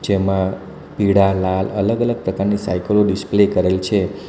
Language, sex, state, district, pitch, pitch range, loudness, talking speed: Gujarati, male, Gujarat, Valsad, 100 Hz, 95-100 Hz, -18 LUFS, 125 wpm